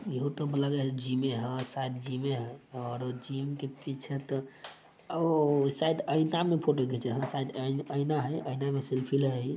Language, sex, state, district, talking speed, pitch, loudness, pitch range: Maithili, male, Bihar, Samastipur, 175 wpm, 135 Hz, -32 LUFS, 130-145 Hz